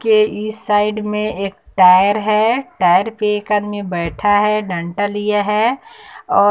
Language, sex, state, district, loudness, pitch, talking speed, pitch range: Hindi, female, Bihar, West Champaran, -16 LUFS, 210 Hz, 155 wpm, 200-215 Hz